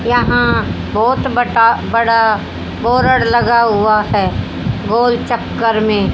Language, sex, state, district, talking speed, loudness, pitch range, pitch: Hindi, female, Haryana, Jhajjar, 105 wpm, -14 LUFS, 225-240 Hz, 230 Hz